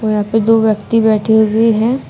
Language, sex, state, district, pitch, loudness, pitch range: Hindi, female, Uttar Pradesh, Shamli, 220 Hz, -13 LUFS, 215-225 Hz